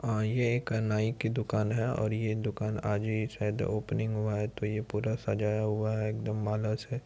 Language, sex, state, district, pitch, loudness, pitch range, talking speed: Hindi, male, Bihar, Supaul, 110 Hz, -31 LUFS, 105-115 Hz, 220 wpm